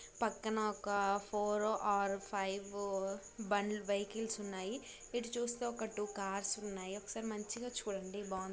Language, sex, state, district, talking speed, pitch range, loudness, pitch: Telugu, female, Andhra Pradesh, Krishna, 120 wpm, 200-220 Hz, -39 LUFS, 205 Hz